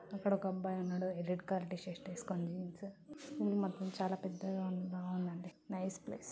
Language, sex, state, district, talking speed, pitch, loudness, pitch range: Telugu, female, Telangana, Nalgonda, 160 wpm, 185 Hz, -40 LUFS, 180-190 Hz